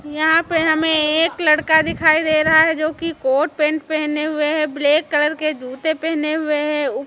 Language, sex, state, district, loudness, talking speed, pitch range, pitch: Hindi, female, Chhattisgarh, Raipur, -17 LUFS, 195 wpm, 300-315 Hz, 310 Hz